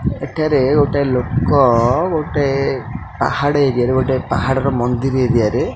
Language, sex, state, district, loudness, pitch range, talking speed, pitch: Odia, male, Odisha, Khordha, -16 LUFS, 125-140 Hz, 135 wpm, 135 Hz